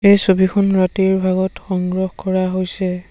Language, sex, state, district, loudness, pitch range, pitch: Assamese, male, Assam, Sonitpur, -17 LUFS, 185-190 Hz, 190 Hz